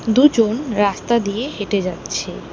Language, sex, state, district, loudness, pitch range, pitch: Bengali, female, West Bengal, Alipurduar, -19 LUFS, 205-240 Hz, 225 Hz